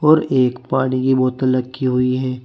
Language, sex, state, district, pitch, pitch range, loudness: Hindi, male, Uttar Pradesh, Saharanpur, 130 Hz, 125-130 Hz, -18 LUFS